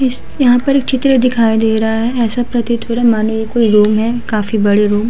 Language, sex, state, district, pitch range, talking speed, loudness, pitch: Hindi, female, Uttar Pradesh, Hamirpur, 220-245 Hz, 270 wpm, -13 LUFS, 230 Hz